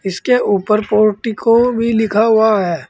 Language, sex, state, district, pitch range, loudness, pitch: Hindi, male, Uttar Pradesh, Saharanpur, 205-230 Hz, -14 LUFS, 220 Hz